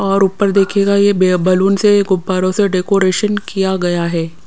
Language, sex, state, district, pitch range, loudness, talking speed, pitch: Hindi, female, Punjab, Pathankot, 185-200 Hz, -14 LUFS, 175 wpm, 195 Hz